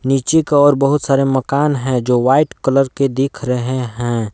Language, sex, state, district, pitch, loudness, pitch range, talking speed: Hindi, male, Jharkhand, Palamu, 135 Hz, -15 LUFS, 125-140 Hz, 195 wpm